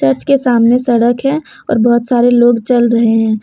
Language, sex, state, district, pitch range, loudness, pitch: Hindi, female, Jharkhand, Deoghar, 230-245 Hz, -11 LUFS, 240 Hz